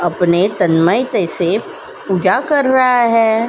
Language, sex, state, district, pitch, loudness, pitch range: Hindi, female, Uttar Pradesh, Jalaun, 225 Hz, -14 LUFS, 180-260 Hz